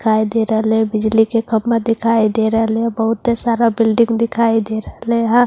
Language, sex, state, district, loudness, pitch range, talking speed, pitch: Hindi, female, Bihar, Katihar, -16 LUFS, 220-230 Hz, 175 wpm, 225 Hz